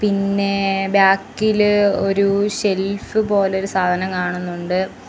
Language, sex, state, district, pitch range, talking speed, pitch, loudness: Malayalam, female, Kerala, Kollam, 190-205 Hz, 95 wpm, 195 Hz, -18 LUFS